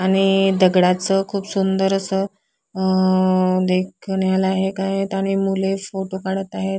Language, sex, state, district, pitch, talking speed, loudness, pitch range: Marathi, male, Maharashtra, Sindhudurg, 195 Hz, 130 wpm, -19 LUFS, 190-195 Hz